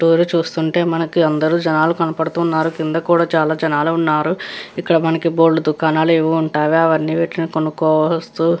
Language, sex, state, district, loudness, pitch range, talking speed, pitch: Telugu, female, Andhra Pradesh, Krishna, -16 LUFS, 160-165 Hz, 145 wpm, 165 Hz